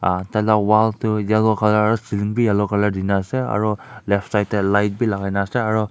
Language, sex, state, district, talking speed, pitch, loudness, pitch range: Nagamese, male, Nagaland, Kohima, 215 wpm, 105 Hz, -19 LUFS, 100-110 Hz